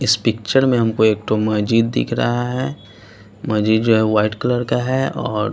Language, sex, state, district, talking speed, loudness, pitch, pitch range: Hindi, male, Bihar, Patna, 195 wpm, -18 LUFS, 110 Hz, 105-125 Hz